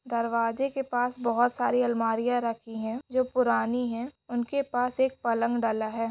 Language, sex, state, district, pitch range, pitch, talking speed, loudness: Hindi, female, Jharkhand, Jamtara, 230-250 Hz, 240 Hz, 165 wpm, -28 LUFS